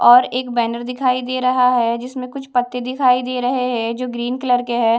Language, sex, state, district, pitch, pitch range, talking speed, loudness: Hindi, female, Odisha, Malkangiri, 250 Hz, 240-255 Hz, 230 wpm, -18 LUFS